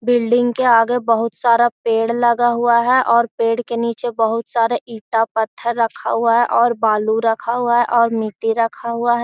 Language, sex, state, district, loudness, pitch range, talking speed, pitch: Magahi, female, Bihar, Gaya, -17 LUFS, 230-240 Hz, 195 wpm, 235 Hz